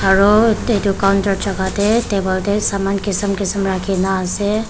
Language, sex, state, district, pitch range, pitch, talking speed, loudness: Nagamese, female, Nagaland, Kohima, 195-205 Hz, 200 Hz, 180 wpm, -17 LUFS